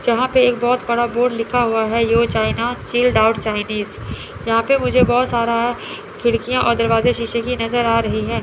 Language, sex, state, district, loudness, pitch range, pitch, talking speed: Hindi, female, Chandigarh, Chandigarh, -17 LUFS, 230-245 Hz, 235 Hz, 200 wpm